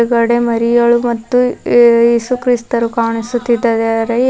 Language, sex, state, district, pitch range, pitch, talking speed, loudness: Kannada, female, Karnataka, Bidar, 230-240 Hz, 235 Hz, 70 wpm, -13 LUFS